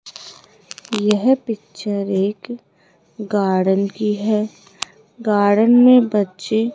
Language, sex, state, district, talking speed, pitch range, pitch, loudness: Hindi, female, Rajasthan, Jaipur, 90 wpm, 200-225 Hz, 210 Hz, -17 LUFS